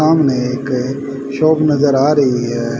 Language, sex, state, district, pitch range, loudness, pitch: Hindi, male, Haryana, Rohtak, 125-150 Hz, -15 LUFS, 135 Hz